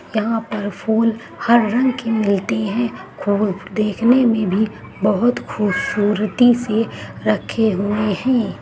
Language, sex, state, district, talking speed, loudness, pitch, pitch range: Hindi, female, Bihar, Saharsa, 125 wpm, -18 LUFS, 220 Hz, 205-235 Hz